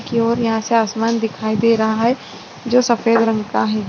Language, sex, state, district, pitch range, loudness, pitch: Hindi, female, Chhattisgarh, Rajnandgaon, 220-235 Hz, -17 LUFS, 230 Hz